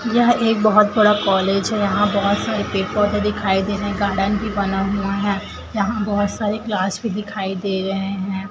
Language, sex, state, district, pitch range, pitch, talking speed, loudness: Hindi, female, Chhattisgarh, Raipur, 195-210 Hz, 205 Hz, 205 wpm, -19 LUFS